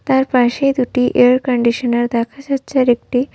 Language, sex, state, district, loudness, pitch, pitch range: Bengali, female, West Bengal, Jhargram, -15 LUFS, 250 Hz, 240-265 Hz